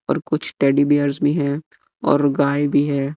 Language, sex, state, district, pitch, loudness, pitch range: Hindi, male, Bihar, West Champaran, 145 Hz, -19 LUFS, 140-145 Hz